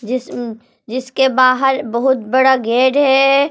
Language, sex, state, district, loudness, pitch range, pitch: Hindi, female, Jharkhand, Palamu, -14 LUFS, 245-265 Hz, 260 Hz